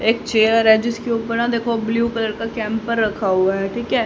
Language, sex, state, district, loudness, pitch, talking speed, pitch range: Hindi, female, Haryana, Charkhi Dadri, -19 LUFS, 225 Hz, 235 wpm, 220-235 Hz